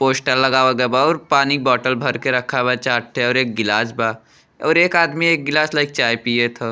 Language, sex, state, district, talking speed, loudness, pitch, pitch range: Bhojpuri, male, Uttar Pradesh, Deoria, 240 wpm, -17 LUFS, 130 Hz, 120-145 Hz